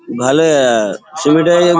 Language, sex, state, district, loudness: Bengali, male, West Bengal, Paschim Medinipur, -12 LUFS